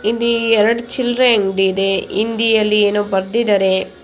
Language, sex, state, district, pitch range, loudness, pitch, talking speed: Kannada, female, Karnataka, Dakshina Kannada, 195-230 Hz, -15 LUFS, 215 Hz, 135 wpm